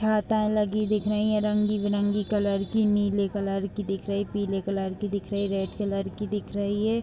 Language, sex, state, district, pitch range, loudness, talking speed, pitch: Hindi, female, Bihar, Vaishali, 200-210 Hz, -27 LUFS, 230 wpm, 205 Hz